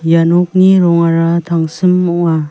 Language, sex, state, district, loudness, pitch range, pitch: Garo, female, Meghalaya, West Garo Hills, -11 LUFS, 165-180 Hz, 170 Hz